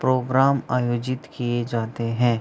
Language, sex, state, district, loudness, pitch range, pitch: Hindi, male, Bihar, Begusarai, -23 LUFS, 120-130 Hz, 120 Hz